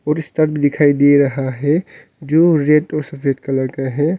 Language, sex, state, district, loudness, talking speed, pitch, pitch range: Hindi, male, Arunachal Pradesh, Longding, -16 LUFS, 155 wpm, 145 Hz, 140-150 Hz